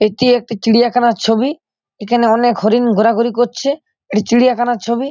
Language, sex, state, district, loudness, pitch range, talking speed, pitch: Bengali, male, West Bengal, Purulia, -14 LUFS, 225-245 Hz, 140 wpm, 235 Hz